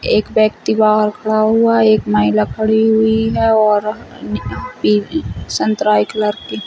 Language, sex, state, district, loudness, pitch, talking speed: Hindi, female, Chhattisgarh, Bilaspur, -15 LUFS, 210 Hz, 145 wpm